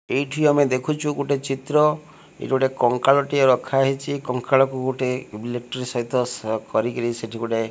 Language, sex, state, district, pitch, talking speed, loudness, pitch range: Odia, male, Odisha, Malkangiri, 130 Hz, 155 wpm, -22 LUFS, 120-140 Hz